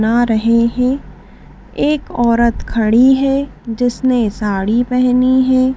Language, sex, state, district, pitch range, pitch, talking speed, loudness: Hindi, female, Madhya Pradesh, Dhar, 230-260 Hz, 245 Hz, 115 wpm, -14 LUFS